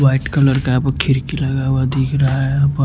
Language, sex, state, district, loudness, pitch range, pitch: Hindi, male, Punjab, Kapurthala, -16 LUFS, 135-140 Hz, 135 Hz